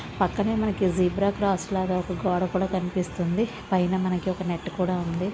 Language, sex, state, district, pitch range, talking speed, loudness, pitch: Telugu, female, Andhra Pradesh, Visakhapatnam, 180-195 Hz, 170 wpm, -26 LUFS, 185 Hz